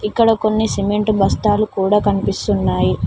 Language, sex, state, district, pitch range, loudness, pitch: Telugu, female, Telangana, Mahabubabad, 205-215 Hz, -16 LUFS, 210 Hz